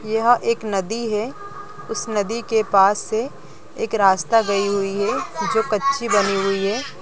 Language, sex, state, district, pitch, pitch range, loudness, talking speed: Hindi, female, Bihar, East Champaran, 220 Hz, 200-230 Hz, -20 LUFS, 155 wpm